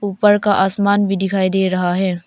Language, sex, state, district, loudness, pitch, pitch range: Hindi, female, Arunachal Pradesh, Papum Pare, -16 LUFS, 195 Hz, 190-200 Hz